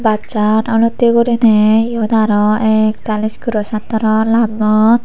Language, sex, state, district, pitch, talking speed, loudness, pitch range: Chakma, female, Tripura, Unakoti, 220 Hz, 105 wpm, -13 LUFS, 215-230 Hz